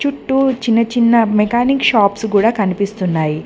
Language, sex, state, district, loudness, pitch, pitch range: Telugu, female, Telangana, Mahabubabad, -14 LUFS, 225 Hz, 200-245 Hz